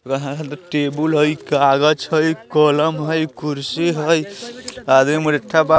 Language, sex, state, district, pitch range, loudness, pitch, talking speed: Bajjika, male, Bihar, Vaishali, 145-160 Hz, -17 LUFS, 155 Hz, 135 wpm